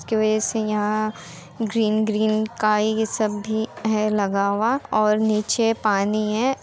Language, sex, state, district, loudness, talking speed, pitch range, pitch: Hindi, female, Bihar, Muzaffarpur, -22 LUFS, 145 wpm, 210-220 Hz, 215 Hz